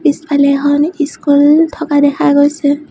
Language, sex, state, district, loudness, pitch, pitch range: Assamese, female, Assam, Sonitpur, -11 LUFS, 290 Hz, 285-300 Hz